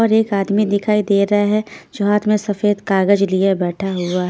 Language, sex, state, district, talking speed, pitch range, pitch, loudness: Hindi, female, Haryana, Rohtak, 210 wpm, 195-210 Hz, 200 Hz, -17 LUFS